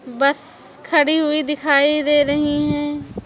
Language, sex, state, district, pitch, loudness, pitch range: Hindi, female, Chhattisgarh, Raipur, 295 Hz, -17 LUFS, 290-300 Hz